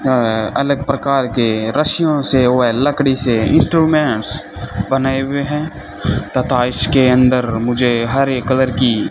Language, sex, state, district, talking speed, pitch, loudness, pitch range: Hindi, male, Rajasthan, Bikaner, 140 wpm, 130 Hz, -15 LUFS, 120-140 Hz